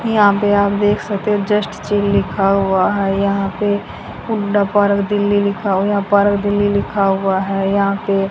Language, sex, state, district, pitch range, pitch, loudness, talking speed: Hindi, female, Haryana, Jhajjar, 195-205 Hz, 200 Hz, -16 LUFS, 210 wpm